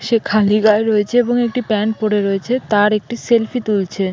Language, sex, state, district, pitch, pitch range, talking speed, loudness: Bengali, female, West Bengal, Purulia, 215 Hz, 210-235 Hz, 145 wpm, -16 LUFS